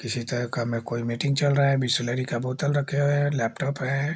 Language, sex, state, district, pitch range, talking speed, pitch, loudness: Hindi, male, Bihar, Jahanabad, 120-145 Hz, 245 wpm, 135 Hz, -25 LUFS